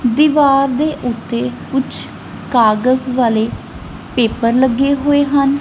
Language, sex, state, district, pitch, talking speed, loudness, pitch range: Punjabi, female, Punjab, Kapurthala, 260 Hz, 105 wpm, -15 LUFS, 240-280 Hz